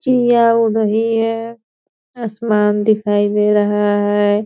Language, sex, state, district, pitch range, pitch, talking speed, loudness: Hindi, female, Bihar, Purnia, 210-230 Hz, 215 Hz, 120 wpm, -15 LUFS